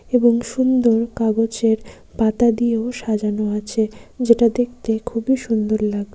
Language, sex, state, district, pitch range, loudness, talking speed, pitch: Bengali, female, West Bengal, Jalpaiguri, 220-240 Hz, -19 LUFS, 135 wpm, 230 Hz